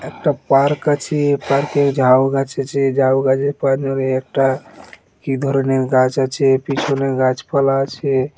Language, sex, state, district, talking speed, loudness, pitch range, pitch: Bengali, male, West Bengal, Dakshin Dinajpur, 130 wpm, -17 LUFS, 130-140 Hz, 135 Hz